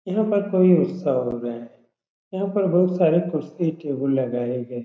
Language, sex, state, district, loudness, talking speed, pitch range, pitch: Hindi, male, Uttar Pradesh, Etah, -22 LUFS, 200 wpm, 125-185 Hz, 165 Hz